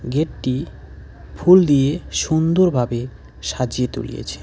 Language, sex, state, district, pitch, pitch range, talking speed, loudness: Bengali, male, West Bengal, Alipurduar, 130 Hz, 125-160 Hz, 80 wpm, -19 LUFS